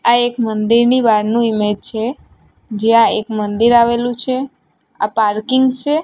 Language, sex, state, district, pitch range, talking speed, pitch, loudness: Gujarati, female, Gujarat, Gandhinagar, 215-245 Hz, 140 wpm, 235 Hz, -15 LUFS